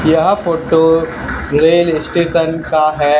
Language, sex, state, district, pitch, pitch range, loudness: Hindi, male, Haryana, Charkhi Dadri, 160 Hz, 155-165 Hz, -13 LUFS